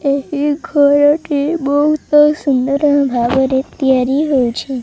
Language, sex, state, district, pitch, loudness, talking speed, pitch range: Odia, female, Odisha, Malkangiri, 285 Hz, -14 LUFS, 85 wpm, 265-295 Hz